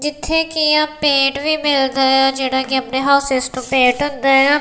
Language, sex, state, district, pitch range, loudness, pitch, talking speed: Punjabi, female, Punjab, Kapurthala, 265-295 Hz, -15 LUFS, 275 Hz, 210 wpm